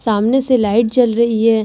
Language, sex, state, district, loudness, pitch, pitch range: Hindi, female, Bihar, Vaishali, -14 LUFS, 230 Hz, 220-245 Hz